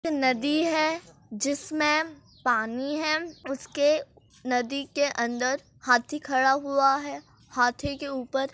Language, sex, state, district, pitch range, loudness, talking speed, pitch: Hindi, female, Maharashtra, Solapur, 255-300 Hz, -26 LUFS, 110 wpm, 275 Hz